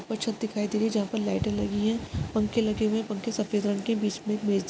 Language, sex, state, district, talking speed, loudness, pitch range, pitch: Hindi, female, Maharashtra, Pune, 320 wpm, -28 LUFS, 205-220 Hz, 215 Hz